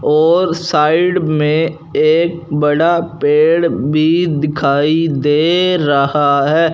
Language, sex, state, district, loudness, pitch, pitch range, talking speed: Hindi, male, Punjab, Fazilka, -13 LUFS, 160 Hz, 150-170 Hz, 100 wpm